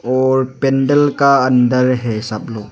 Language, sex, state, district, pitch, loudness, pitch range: Hindi, male, Arunachal Pradesh, Lower Dibang Valley, 130 Hz, -14 LUFS, 120-135 Hz